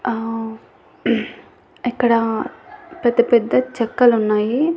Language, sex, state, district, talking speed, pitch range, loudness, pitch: Telugu, female, Andhra Pradesh, Annamaya, 75 wpm, 225-255 Hz, -18 LUFS, 235 Hz